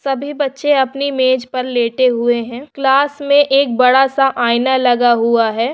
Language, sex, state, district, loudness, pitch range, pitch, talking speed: Hindi, female, Bihar, Bhagalpur, -14 LUFS, 240-275 Hz, 260 Hz, 165 wpm